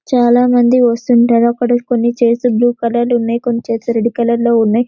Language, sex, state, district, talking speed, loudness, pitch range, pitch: Telugu, female, Telangana, Karimnagar, 210 wpm, -13 LUFS, 235-245 Hz, 240 Hz